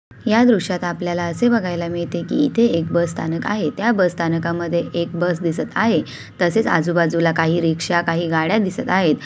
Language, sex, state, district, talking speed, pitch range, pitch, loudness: Marathi, female, Maharashtra, Sindhudurg, 175 wpm, 165-185 Hz, 170 Hz, -19 LUFS